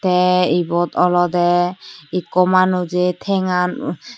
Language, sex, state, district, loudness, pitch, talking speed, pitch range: Chakma, female, Tripura, Unakoti, -17 LUFS, 180 Hz, 85 wpm, 175-185 Hz